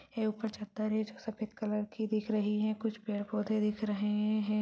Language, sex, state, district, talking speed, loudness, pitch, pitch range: Hindi, female, Chhattisgarh, Raigarh, 205 wpm, -34 LUFS, 215 Hz, 210-215 Hz